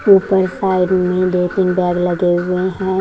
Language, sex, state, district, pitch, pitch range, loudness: Hindi, female, Haryana, Jhajjar, 185 Hz, 180-190 Hz, -16 LUFS